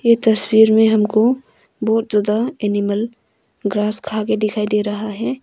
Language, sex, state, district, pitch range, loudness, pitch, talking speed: Hindi, female, Arunachal Pradesh, Longding, 210-225 Hz, -17 LUFS, 215 Hz, 155 wpm